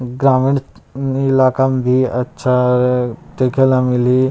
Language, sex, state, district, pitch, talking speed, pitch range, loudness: Chhattisgarhi, male, Chhattisgarh, Rajnandgaon, 130 Hz, 110 wpm, 125-135 Hz, -15 LUFS